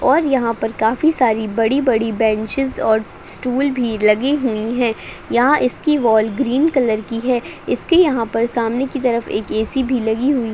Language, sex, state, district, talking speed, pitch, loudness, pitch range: Hindi, female, Uttar Pradesh, Ghazipur, 180 wpm, 240 Hz, -17 LUFS, 220-265 Hz